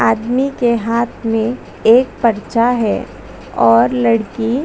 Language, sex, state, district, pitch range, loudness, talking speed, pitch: Hindi, female, Chhattisgarh, Bastar, 225-245 Hz, -15 LUFS, 180 wpm, 235 Hz